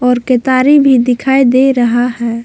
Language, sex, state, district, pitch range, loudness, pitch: Hindi, female, Jharkhand, Palamu, 245-265 Hz, -10 LUFS, 250 Hz